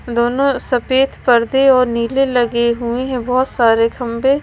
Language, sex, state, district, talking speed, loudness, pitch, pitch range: Hindi, female, Himachal Pradesh, Shimla, 150 wpm, -15 LUFS, 250 Hz, 235-265 Hz